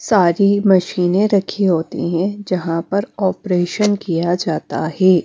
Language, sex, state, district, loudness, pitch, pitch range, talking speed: Hindi, female, Punjab, Fazilka, -17 LUFS, 185 Hz, 175-200 Hz, 125 wpm